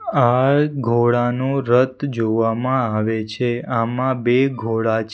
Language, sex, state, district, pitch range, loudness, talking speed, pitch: Gujarati, male, Gujarat, Valsad, 115-130 Hz, -19 LUFS, 130 wpm, 120 Hz